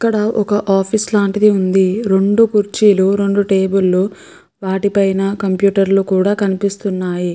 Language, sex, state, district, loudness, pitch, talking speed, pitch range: Telugu, female, Andhra Pradesh, Chittoor, -14 LUFS, 200 Hz, 115 wpm, 190-205 Hz